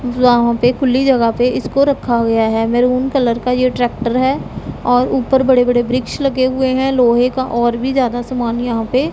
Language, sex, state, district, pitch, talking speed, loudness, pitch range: Hindi, female, Punjab, Pathankot, 250 Hz, 205 wpm, -15 LUFS, 240-260 Hz